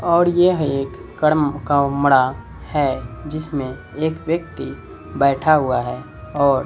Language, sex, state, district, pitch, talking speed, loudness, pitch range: Hindi, female, Bihar, West Champaran, 140 Hz, 125 wpm, -19 LUFS, 130-155 Hz